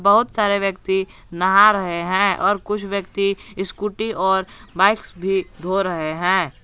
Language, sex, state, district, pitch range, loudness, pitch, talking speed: Hindi, male, Jharkhand, Garhwa, 185-205 Hz, -19 LUFS, 195 Hz, 145 wpm